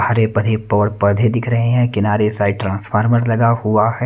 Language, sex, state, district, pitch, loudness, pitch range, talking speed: Hindi, male, Punjab, Kapurthala, 110 Hz, -16 LUFS, 105-115 Hz, 190 wpm